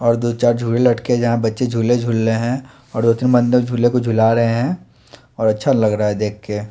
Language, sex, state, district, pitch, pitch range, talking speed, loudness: Hindi, male, Chandigarh, Chandigarh, 120 Hz, 110-120 Hz, 250 wpm, -17 LUFS